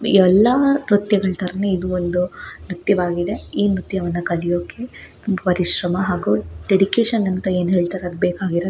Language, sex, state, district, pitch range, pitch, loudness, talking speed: Kannada, female, Karnataka, Shimoga, 175-200 Hz, 185 Hz, -19 LUFS, 125 wpm